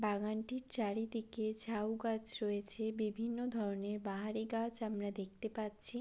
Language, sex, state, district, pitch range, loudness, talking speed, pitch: Bengali, female, West Bengal, Jalpaiguri, 210-225 Hz, -39 LUFS, 130 wpm, 220 Hz